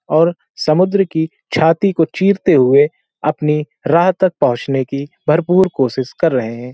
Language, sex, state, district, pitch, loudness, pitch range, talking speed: Hindi, male, Uttar Pradesh, Hamirpur, 160 Hz, -15 LUFS, 140-175 Hz, 160 wpm